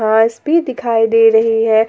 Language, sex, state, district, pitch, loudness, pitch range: Hindi, female, Jharkhand, Palamu, 225 Hz, -13 LUFS, 225-235 Hz